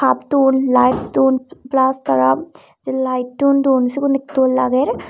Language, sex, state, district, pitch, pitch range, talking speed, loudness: Chakma, female, Tripura, Unakoti, 265 Hz, 255-275 Hz, 130 wpm, -16 LUFS